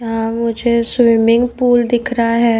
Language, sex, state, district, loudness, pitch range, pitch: Hindi, female, Maharashtra, Mumbai Suburban, -14 LUFS, 230-240 Hz, 235 Hz